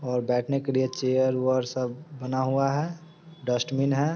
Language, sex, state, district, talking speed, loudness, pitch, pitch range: Hindi, male, Bihar, Sitamarhi, 185 wpm, -26 LUFS, 130 Hz, 130-140 Hz